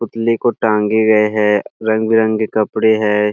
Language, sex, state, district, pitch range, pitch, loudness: Hindi, male, Chhattisgarh, Rajnandgaon, 105-110 Hz, 110 Hz, -15 LUFS